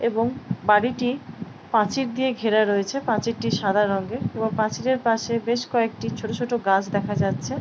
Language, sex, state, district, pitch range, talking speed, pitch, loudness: Bengali, female, West Bengal, Paschim Medinipur, 210-245 Hz, 150 wpm, 230 Hz, -23 LUFS